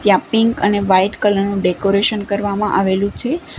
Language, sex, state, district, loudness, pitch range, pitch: Gujarati, female, Gujarat, Gandhinagar, -16 LUFS, 195-210 Hz, 200 Hz